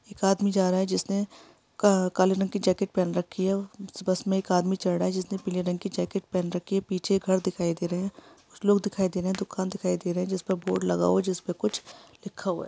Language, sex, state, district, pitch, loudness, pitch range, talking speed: Hindi, female, Bihar, Kishanganj, 190 Hz, -27 LUFS, 180-195 Hz, 270 wpm